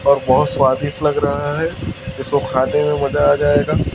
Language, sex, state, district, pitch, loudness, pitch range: Hindi, male, Chhattisgarh, Raipur, 145 Hz, -17 LUFS, 140-145 Hz